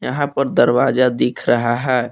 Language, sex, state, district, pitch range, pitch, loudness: Hindi, male, Jharkhand, Palamu, 120-140 Hz, 125 Hz, -17 LUFS